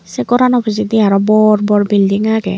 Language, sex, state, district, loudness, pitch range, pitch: Chakma, female, Tripura, Unakoti, -12 LUFS, 205-220 Hz, 215 Hz